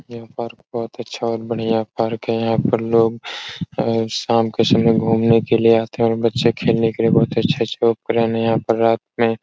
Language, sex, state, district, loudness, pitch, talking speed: Hindi, male, Bihar, Jahanabad, -18 LUFS, 115 Hz, 210 wpm